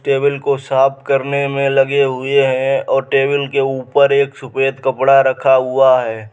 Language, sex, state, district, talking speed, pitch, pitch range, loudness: Hindi, male, Uttar Pradesh, Muzaffarnagar, 170 wpm, 135 Hz, 135-140 Hz, -15 LUFS